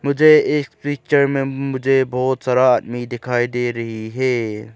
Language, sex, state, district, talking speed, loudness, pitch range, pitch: Hindi, male, Arunachal Pradesh, Lower Dibang Valley, 150 wpm, -18 LUFS, 120-135 Hz, 130 Hz